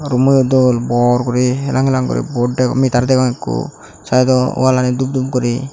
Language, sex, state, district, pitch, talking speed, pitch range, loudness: Chakma, male, Tripura, Unakoti, 130 Hz, 190 wpm, 125-130 Hz, -15 LUFS